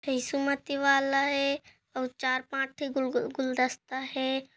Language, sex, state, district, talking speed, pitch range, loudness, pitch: Hindi, female, Chhattisgarh, Kabirdham, 130 wpm, 260-280 Hz, -29 LUFS, 270 Hz